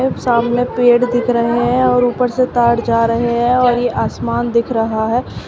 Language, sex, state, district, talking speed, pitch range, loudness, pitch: Hindi, female, Uttar Pradesh, Shamli, 195 wpm, 235-245 Hz, -15 LUFS, 240 Hz